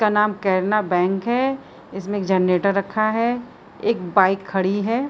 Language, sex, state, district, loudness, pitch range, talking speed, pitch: Hindi, female, Uttar Pradesh, Budaun, -20 LUFS, 190-225 Hz, 165 wpm, 200 Hz